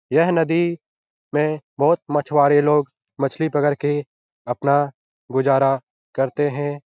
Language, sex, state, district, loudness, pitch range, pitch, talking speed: Hindi, male, Bihar, Jahanabad, -20 LUFS, 135-150 Hz, 145 Hz, 120 wpm